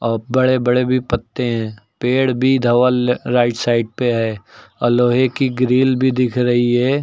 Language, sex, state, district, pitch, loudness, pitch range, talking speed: Hindi, male, Uttar Pradesh, Lucknow, 125 Hz, -17 LUFS, 120-130 Hz, 180 wpm